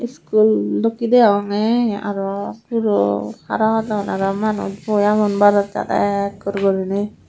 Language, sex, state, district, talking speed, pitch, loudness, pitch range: Chakma, female, Tripura, Unakoti, 105 wpm, 205 Hz, -18 LUFS, 195-215 Hz